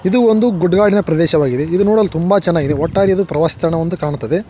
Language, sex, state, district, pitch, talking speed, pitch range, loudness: Kannada, male, Karnataka, Koppal, 175 Hz, 185 wpm, 160-200 Hz, -14 LUFS